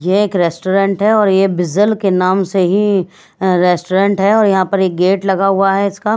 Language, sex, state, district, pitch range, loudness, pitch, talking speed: Hindi, female, Bihar, West Champaran, 185-200 Hz, -13 LUFS, 195 Hz, 225 wpm